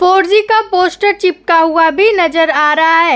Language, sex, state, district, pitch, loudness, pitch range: Hindi, female, Uttar Pradesh, Etah, 360 Hz, -10 LUFS, 325-400 Hz